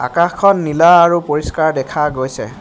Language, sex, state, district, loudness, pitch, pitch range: Assamese, male, Assam, Hailakandi, -13 LUFS, 155 Hz, 150-170 Hz